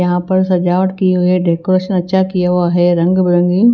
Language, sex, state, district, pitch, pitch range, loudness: Hindi, female, Himachal Pradesh, Shimla, 180 Hz, 175-185 Hz, -13 LUFS